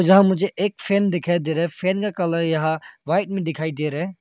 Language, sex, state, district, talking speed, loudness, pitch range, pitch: Hindi, male, Arunachal Pradesh, Longding, 255 wpm, -21 LUFS, 160-195 Hz, 175 Hz